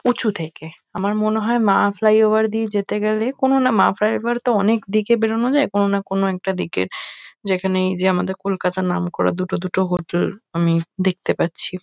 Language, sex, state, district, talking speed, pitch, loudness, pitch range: Bengali, female, West Bengal, Kolkata, 175 wpm, 200 Hz, -19 LUFS, 185-220 Hz